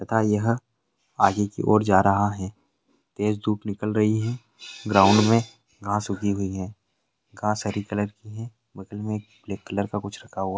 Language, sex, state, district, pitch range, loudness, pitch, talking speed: Hindi, male, Bihar, Saran, 100-110 Hz, -24 LUFS, 105 Hz, 185 wpm